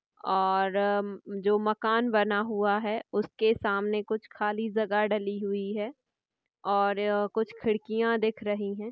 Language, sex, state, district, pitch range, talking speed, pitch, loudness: Hindi, female, Chhattisgarh, Raigarh, 205-220 Hz, 135 wpm, 210 Hz, -29 LUFS